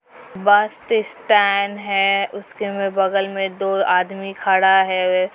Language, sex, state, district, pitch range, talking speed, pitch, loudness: Hindi, female, Bihar, Kishanganj, 190-205 Hz, 135 wpm, 195 Hz, -18 LUFS